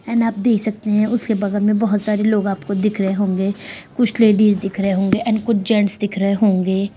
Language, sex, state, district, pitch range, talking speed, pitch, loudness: Hindi, female, Bihar, Sitamarhi, 200-220 Hz, 225 wpm, 210 Hz, -18 LUFS